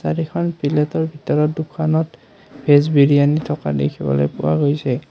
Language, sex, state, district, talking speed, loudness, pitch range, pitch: Assamese, male, Assam, Kamrup Metropolitan, 115 wpm, -18 LUFS, 140-155 Hz, 150 Hz